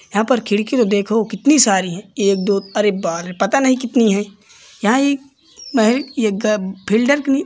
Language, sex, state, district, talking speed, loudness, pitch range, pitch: Hindi, male, Uttar Pradesh, Varanasi, 185 wpm, -17 LUFS, 200-260 Hz, 215 Hz